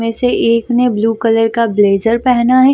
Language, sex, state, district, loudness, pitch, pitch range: Hindi, female, Bihar, Samastipur, -13 LUFS, 230 Hz, 225-245 Hz